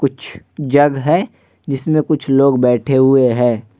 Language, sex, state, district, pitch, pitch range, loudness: Hindi, male, Bihar, Vaishali, 135 Hz, 125-145 Hz, -14 LUFS